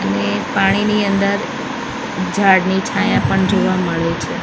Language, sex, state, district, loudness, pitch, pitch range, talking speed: Gujarati, female, Maharashtra, Mumbai Suburban, -16 LUFS, 200 Hz, 190-210 Hz, 120 wpm